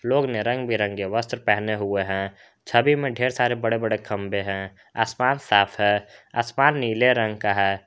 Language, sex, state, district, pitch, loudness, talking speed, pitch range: Hindi, male, Jharkhand, Garhwa, 110 Hz, -23 LUFS, 185 wpm, 100-120 Hz